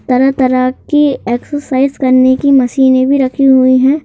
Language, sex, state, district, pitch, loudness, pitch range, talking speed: Hindi, male, Madhya Pradesh, Bhopal, 265 Hz, -11 LUFS, 255-275 Hz, 150 wpm